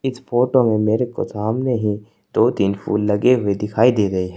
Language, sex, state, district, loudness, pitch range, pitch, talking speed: Hindi, male, Uttar Pradesh, Saharanpur, -18 LUFS, 105-125 Hz, 110 Hz, 190 wpm